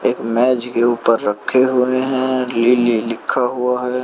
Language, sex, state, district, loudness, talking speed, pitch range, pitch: Hindi, male, Haryana, Rohtak, -17 LUFS, 165 wpm, 115-125 Hz, 125 Hz